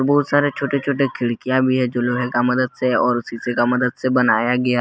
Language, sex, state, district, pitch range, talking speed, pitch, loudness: Hindi, male, Jharkhand, Garhwa, 120-130 Hz, 235 wpm, 125 Hz, -19 LUFS